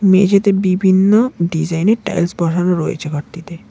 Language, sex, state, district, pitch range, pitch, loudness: Bengali, male, West Bengal, Cooch Behar, 170-195 Hz, 180 Hz, -15 LUFS